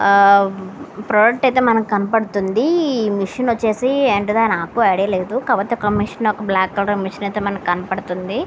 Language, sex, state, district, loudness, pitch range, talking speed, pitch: Telugu, female, Andhra Pradesh, Srikakulam, -17 LUFS, 195-230 Hz, 135 wpm, 205 Hz